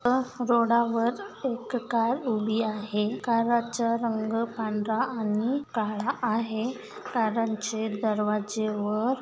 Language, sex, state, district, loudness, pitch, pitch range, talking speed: Marathi, female, Maharashtra, Solapur, -28 LUFS, 230 Hz, 215-240 Hz, 100 wpm